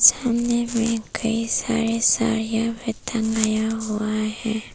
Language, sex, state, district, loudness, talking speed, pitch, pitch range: Hindi, female, Arunachal Pradesh, Papum Pare, -22 LUFS, 115 wpm, 225 Hz, 220-230 Hz